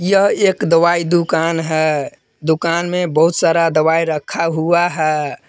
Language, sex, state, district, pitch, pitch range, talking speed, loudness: Hindi, male, Jharkhand, Palamu, 165 Hz, 160-175 Hz, 140 wpm, -15 LUFS